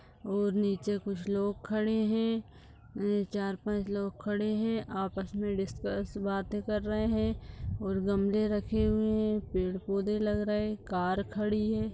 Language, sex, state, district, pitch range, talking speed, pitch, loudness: Hindi, female, Bihar, Begusarai, 200-215 Hz, 145 wpm, 205 Hz, -32 LUFS